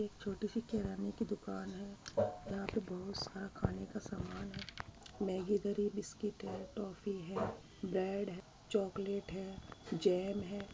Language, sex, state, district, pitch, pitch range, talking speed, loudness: Hindi, female, Uttar Pradesh, Muzaffarnagar, 200 Hz, 190-205 Hz, 150 wpm, -41 LUFS